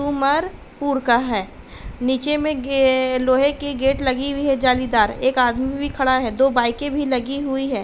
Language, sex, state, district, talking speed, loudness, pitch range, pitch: Hindi, female, Uttar Pradesh, Hamirpur, 190 wpm, -19 LUFS, 255-280 Hz, 265 Hz